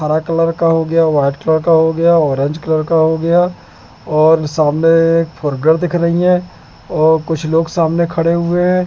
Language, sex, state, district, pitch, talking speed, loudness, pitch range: Hindi, male, Madhya Pradesh, Katni, 165 Hz, 205 wpm, -13 LUFS, 155-170 Hz